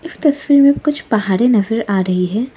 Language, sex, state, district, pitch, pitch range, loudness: Hindi, female, Arunachal Pradesh, Lower Dibang Valley, 235 Hz, 210-285 Hz, -15 LUFS